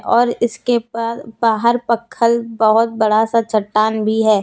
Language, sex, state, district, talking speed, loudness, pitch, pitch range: Hindi, female, Jharkhand, Deoghar, 150 wpm, -16 LUFS, 230 Hz, 220-235 Hz